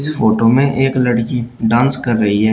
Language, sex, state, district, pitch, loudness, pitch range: Hindi, male, Uttar Pradesh, Shamli, 120 Hz, -14 LUFS, 115-130 Hz